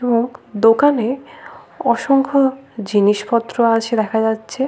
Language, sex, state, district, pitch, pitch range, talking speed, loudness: Bengali, female, West Bengal, Paschim Medinipur, 235 Hz, 220-265 Hz, 100 wpm, -17 LUFS